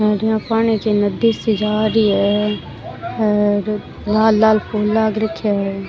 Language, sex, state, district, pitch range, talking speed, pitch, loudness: Rajasthani, female, Rajasthan, Churu, 205-220 Hz, 165 wpm, 210 Hz, -17 LUFS